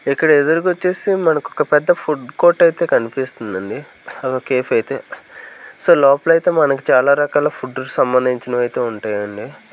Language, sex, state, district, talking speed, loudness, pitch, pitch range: Telugu, male, Andhra Pradesh, Sri Satya Sai, 140 wpm, -16 LUFS, 140 Hz, 125-160 Hz